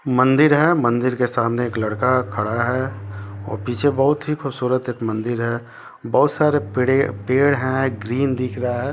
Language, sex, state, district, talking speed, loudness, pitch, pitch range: Hindi, male, Bihar, Gopalganj, 175 wpm, -20 LUFS, 125 Hz, 115-135 Hz